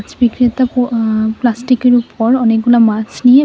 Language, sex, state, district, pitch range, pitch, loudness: Bengali, female, Tripura, West Tripura, 225-250 Hz, 240 Hz, -13 LUFS